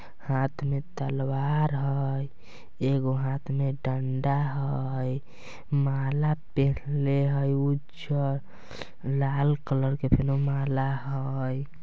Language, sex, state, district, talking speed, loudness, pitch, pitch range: Bajjika, male, Bihar, Vaishali, 95 wpm, -28 LUFS, 140 Hz, 135-140 Hz